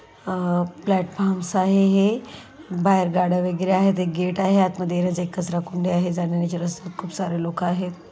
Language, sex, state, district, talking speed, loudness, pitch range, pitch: Marathi, female, Maharashtra, Solapur, 150 wpm, -22 LUFS, 175-190 Hz, 180 Hz